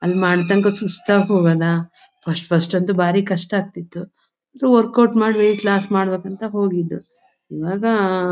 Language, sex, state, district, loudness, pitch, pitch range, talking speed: Kannada, female, Karnataka, Shimoga, -18 LUFS, 195 Hz, 180-210 Hz, 130 wpm